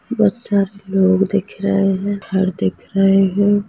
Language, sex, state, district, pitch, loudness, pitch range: Hindi, female, Chhattisgarh, Rajnandgaon, 195 Hz, -17 LUFS, 195-205 Hz